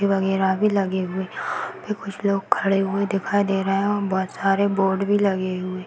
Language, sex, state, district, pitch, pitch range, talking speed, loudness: Hindi, female, Uttar Pradesh, Varanasi, 195 Hz, 190-200 Hz, 235 wpm, -22 LUFS